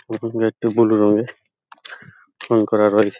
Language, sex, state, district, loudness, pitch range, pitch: Bengali, male, West Bengal, Purulia, -18 LUFS, 105-115 Hz, 110 Hz